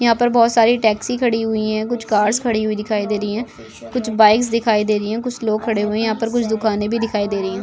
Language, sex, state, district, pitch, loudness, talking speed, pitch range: Hindi, female, Goa, North and South Goa, 220 Hz, -18 LUFS, 285 wpm, 210-230 Hz